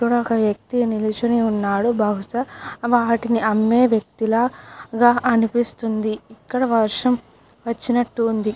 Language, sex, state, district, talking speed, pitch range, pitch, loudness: Telugu, female, Andhra Pradesh, Krishna, 100 wpm, 220-240 Hz, 230 Hz, -20 LUFS